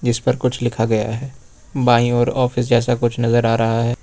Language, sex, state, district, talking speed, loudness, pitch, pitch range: Hindi, male, Jharkhand, Ranchi, 225 wpm, -18 LUFS, 120 Hz, 115-125 Hz